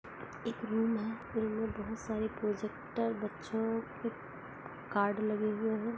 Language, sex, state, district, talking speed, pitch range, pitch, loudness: Hindi, female, Jharkhand, Jamtara, 130 wpm, 215-225 Hz, 220 Hz, -36 LUFS